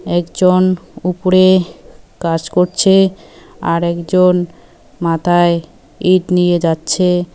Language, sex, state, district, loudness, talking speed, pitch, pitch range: Bengali, female, West Bengal, Cooch Behar, -14 LUFS, 80 wpm, 180 Hz, 170-185 Hz